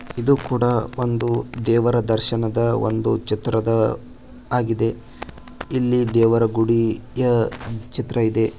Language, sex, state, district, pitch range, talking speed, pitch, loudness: Kannada, male, Karnataka, Bijapur, 115-120 Hz, 90 wpm, 115 Hz, -20 LUFS